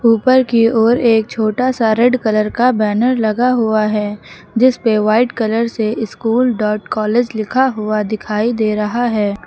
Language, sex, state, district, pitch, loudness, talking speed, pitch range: Hindi, female, Uttar Pradesh, Lucknow, 225 Hz, -15 LUFS, 170 wpm, 215-240 Hz